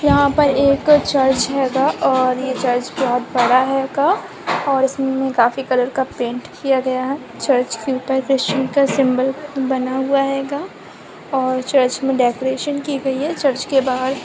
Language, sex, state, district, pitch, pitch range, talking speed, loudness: Hindi, female, Uttar Pradesh, Muzaffarnagar, 265 Hz, 255-275 Hz, 170 wpm, -18 LUFS